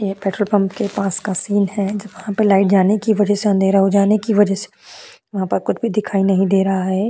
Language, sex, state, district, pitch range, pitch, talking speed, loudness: Hindi, female, Goa, North and South Goa, 195-205 Hz, 200 Hz, 255 wpm, -17 LUFS